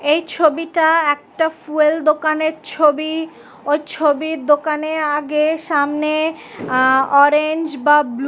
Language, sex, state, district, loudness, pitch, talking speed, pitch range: Bengali, female, West Bengal, Dakshin Dinajpur, -16 LUFS, 305 Hz, 115 wpm, 295-315 Hz